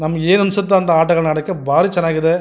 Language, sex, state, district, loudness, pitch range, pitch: Kannada, male, Karnataka, Mysore, -15 LUFS, 160-190 Hz, 165 Hz